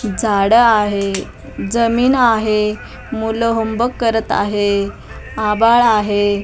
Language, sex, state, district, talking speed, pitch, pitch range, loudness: Marathi, female, Maharashtra, Mumbai Suburban, 95 wpm, 220 Hz, 205-230 Hz, -15 LUFS